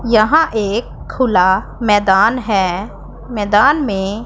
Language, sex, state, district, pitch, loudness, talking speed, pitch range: Hindi, female, Punjab, Pathankot, 215 Hz, -14 LUFS, 115 wpm, 195-240 Hz